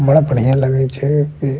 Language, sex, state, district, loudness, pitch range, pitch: Bajjika, male, Bihar, Vaishali, -15 LUFS, 135-145 Hz, 135 Hz